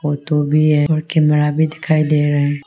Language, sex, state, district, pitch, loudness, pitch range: Hindi, female, Arunachal Pradesh, Longding, 150 Hz, -15 LUFS, 145-155 Hz